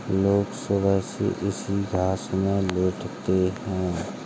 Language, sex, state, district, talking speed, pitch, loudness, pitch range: Hindi, male, Uttar Pradesh, Jalaun, 115 wpm, 95 Hz, -25 LUFS, 95-100 Hz